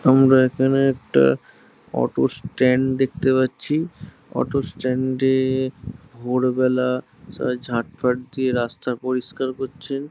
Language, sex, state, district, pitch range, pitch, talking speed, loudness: Bengali, male, West Bengal, Jhargram, 125-135 Hz, 130 Hz, 100 wpm, -21 LUFS